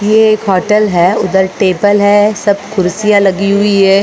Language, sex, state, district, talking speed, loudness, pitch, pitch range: Hindi, female, Maharashtra, Mumbai Suburban, 180 wpm, -10 LUFS, 200 Hz, 190-210 Hz